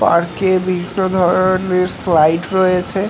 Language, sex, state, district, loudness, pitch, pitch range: Bengali, male, West Bengal, North 24 Parganas, -15 LUFS, 185 Hz, 175-190 Hz